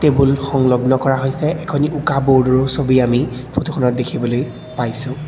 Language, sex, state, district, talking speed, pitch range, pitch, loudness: Assamese, male, Assam, Kamrup Metropolitan, 125 wpm, 130-145 Hz, 135 Hz, -17 LUFS